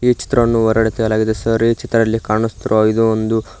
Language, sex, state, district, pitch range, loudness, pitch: Kannada, male, Karnataka, Koppal, 110-115 Hz, -16 LUFS, 115 Hz